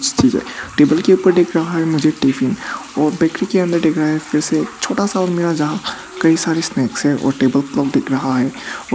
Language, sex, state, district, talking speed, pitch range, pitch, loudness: Hindi, male, Arunachal Pradesh, Papum Pare, 195 wpm, 145-175 Hz, 160 Hz, -16 LUFS